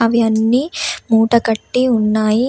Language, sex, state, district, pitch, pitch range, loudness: Telugu, female, Telangana, Komaram Bheem, 230 Hz, 220-245 Hz, -15 LUFS